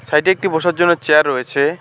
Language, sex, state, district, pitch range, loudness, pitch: Bengali, male, West Bengal, Alipurduar, 145-175 Hz, -15 LUFS, 155 Hz